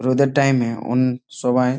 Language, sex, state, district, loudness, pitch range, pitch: Bengali, male, West Bengal, Malda, -19 LUFS, 125-135 Hz, 125 Hz